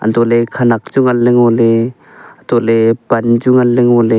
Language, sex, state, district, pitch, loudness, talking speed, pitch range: Wancho, male, Arunachal Pradesh, Longding, 115 Hz, -12 LUFS, 145 wpm, 115-120 Hz